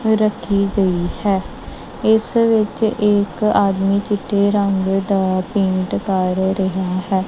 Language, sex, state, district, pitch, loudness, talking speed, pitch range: Punjabi, male, Punjab, Kapurthala, 200 Hz, -18 LUFS, 115 wpm, 190-210 Hz